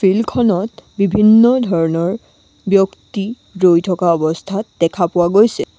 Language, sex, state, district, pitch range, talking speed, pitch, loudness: Assamese, female, Assam, Sonitpur, 175-215 Hz, 115 wpm, 195 Hz, -15 LUFS